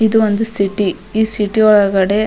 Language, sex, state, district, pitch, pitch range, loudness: Kannada, female, Karnataka, Dharwad, 210 Hz, 200-220 Hz, -13 LUFS